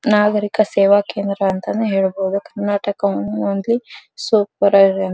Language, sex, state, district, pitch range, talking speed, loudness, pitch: Kannada, female, Karnataka, Dharwad, 195-210 Hz, 95 wpm, -17 LUFS, 200 Hz